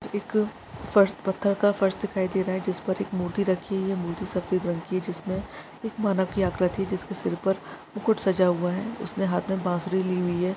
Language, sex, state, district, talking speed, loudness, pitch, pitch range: Hindi, male, Jharkhand, Jamtara, 220 wpm, -26 LUFS, 190 Hz, 185-200 Hz